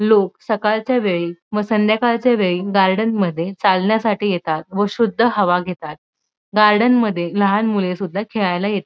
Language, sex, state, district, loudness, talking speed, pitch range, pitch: Marathi, female, Maharashtra, Dhule, -17 LUFS, 140 wpm, 185-220 Hz, 205 Hz